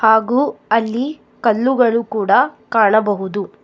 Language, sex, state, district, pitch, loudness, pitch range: Kannada, female, Karnataka, Bangalore, 225 Hz, -16 LUFS, 215-250 Hz